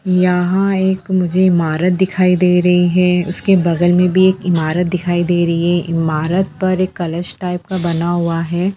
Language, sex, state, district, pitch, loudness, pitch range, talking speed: Bhojpuri, female, Bihar, Saran, 180 Hz, -15 LUFS, 175-185 Hz, 190 wpm